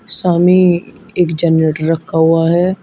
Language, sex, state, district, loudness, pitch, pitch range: Hindi, male, Uttar Pradesh, Shamli, -13 LUFS, 170 Hz, 165-180 Hz